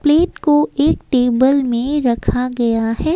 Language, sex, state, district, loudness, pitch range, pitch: Hindi, female, Assam, Kamrup Metropolitan, -16 LUFS, 240-295 Hz, 265 Hz